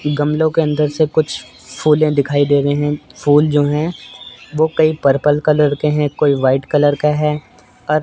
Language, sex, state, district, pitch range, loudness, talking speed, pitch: Hindi, male, Chandigarh, Chandigarh, 145-155 Hz, -15 LUFS, 185 wpm, 150 Hz